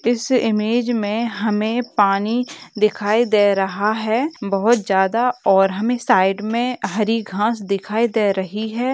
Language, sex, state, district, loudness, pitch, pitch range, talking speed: Hindi, female, Uttar Pradesh, Etah, -19 LUFS, 220 Hz, 205-235 Hz, 140 wpm